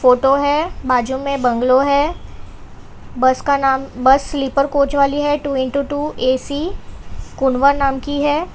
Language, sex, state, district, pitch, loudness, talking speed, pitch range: Hindi, female, Gujarat, Valsad, 275 Hz, -17 LUFS, 155 wpm, 265-285 Hz